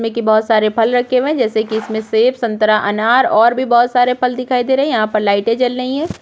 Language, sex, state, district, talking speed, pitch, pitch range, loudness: Hindi, female, Chhattisgarh, Korba, 270 wpm, 230 Hz, 220-250 Hz, -14 LUFS